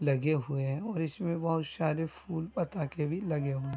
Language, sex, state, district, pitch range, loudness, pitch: Hindi, male, Maharashtra, Aurangabad, 140-165 Hz, -33 LUFS, 155 Hz